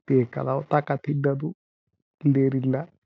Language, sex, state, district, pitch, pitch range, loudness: Kannada, male, Karnataka, Chamarajanagar, 140 Hz, 135-150 Hz, -25 LUFS